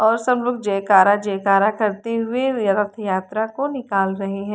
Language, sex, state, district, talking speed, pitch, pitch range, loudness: Hindi, female, Haryana, Rohtak, 170 wpm, 210 Hz, 195-230 Hz, -19 LUFS